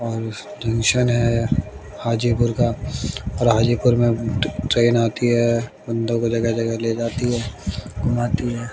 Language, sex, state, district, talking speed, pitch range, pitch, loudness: Hindi, male, Haryana, Jhajjar, 145 wpm, 115-120 Hz, 115 Hz, -21 LUFS